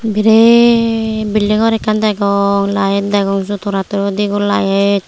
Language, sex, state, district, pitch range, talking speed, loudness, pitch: Chakma, female, Tripura, Unakoti, 200-220 Hz, 95 wpm, -13 LUFS, 205 Hz